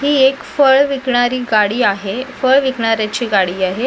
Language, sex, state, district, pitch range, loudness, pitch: Marathi, female, Maharashtra, Mumbai Suburban, 215-270 Hz, -15 LUFS, 250 Hz